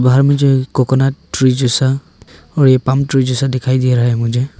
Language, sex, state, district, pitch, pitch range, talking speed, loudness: Hindi, male, Arunachal Pradesh, Longding, 130 Hz, 125-135 Hz, 220 wpm, -14 LUFS